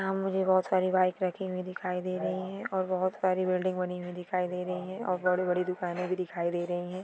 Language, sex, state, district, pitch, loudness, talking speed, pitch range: Hindi, female, Maharashtra, Aurangabad, 185 Hz, -31 LUFS, 245 wpm, 180-185 Hz